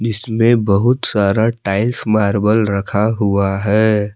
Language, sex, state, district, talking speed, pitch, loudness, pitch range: Hindi, male, Jharkhand, Palamu, 115 wpm, 105 Hz, -15 LUFS, 100-115 Hz